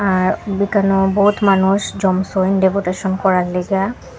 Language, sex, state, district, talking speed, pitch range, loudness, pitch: Bengali, female, Assam, Hailakandi, 115 wpm, 190-200 Hz, -16 LUFS, 195 Hz